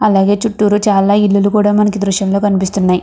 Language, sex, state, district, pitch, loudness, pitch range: Telugu, female, Andhra Pradesh, Anantapur, 200 Hz, -12 LUFS, 195-210 Hz